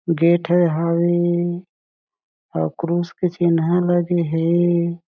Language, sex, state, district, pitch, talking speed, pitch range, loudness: Chhattisgarhi, male, Chhattisgarh, Jashpur, 170 Hz, 95 wpm, 170-175 Hz, -19 LUFS